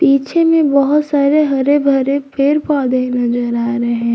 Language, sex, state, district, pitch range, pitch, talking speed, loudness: Hindi, female, Jharkhand, Garhwa, 250-290 Hz, 275 Hz, 175 wpm, -14 LUFS